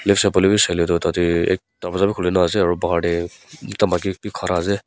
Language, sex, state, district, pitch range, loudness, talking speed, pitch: Nagamese, male, Nagaland, Kohima, 85-100 Hz, -19 LUFS, 195 wpm, 90 Hz